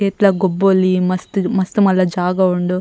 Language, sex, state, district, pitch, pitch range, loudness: Tulu, female, Karnataka, Dakshina Kannada, 185 Hz, 180-195 Hz, -16 LUFS